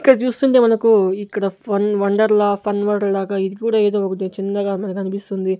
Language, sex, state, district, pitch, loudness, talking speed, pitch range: Telugu, male, Andhra Pradesh, Sri Satya Sai, 200 Hz, -18 LUFS, 180 wpm, 195-215 Hz